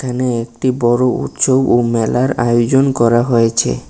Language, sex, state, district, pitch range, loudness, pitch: Bengali, male, Tripura, West Tripura, 115-130 Hz, -14 LUFS, 120 Hz